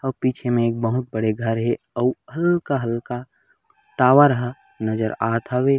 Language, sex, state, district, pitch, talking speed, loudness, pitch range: Chhattisgarhi, male, Chhattisgarh, Raigarh, 125 Hz, 155 wpm, -21 LUFS, 115-130 Hz